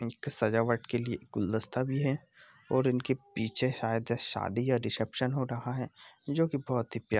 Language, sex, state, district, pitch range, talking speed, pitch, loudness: Hindi, male, Bihar, Gopalganj, 115-130 Hz, 185 wpm, 120 Hz, -32 LUFS